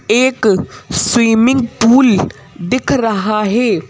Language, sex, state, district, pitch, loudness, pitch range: Hindi, female, Madhya Pradesh, Bhopal, 225 Hz, -13 LUFS, 210-245 Hz